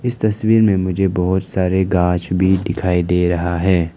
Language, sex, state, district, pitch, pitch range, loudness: Hindi, male, Arunachal Pradesh, Lower Dibang Valley, 90 Hz, 90-95 Hz, -17 LUFS